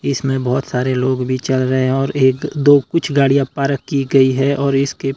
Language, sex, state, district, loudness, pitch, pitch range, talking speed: Hindi, male, Himachal Pradesh, Shimla, -16 LUFS, 135 Hz, 130-140 Hz, 220 wpm